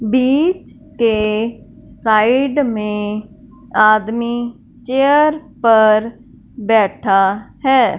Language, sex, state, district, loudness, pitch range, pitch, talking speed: Hindi, male, Punjab, Fazilka, -15 LUFS, 215-255 Hz, 230 Hz, 70 wpm